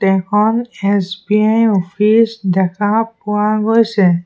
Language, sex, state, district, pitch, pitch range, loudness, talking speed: Assamese, male, Assam, Sonitpur, 210 Hz, 190-220 Hz, -14 LUFS, 85 wpm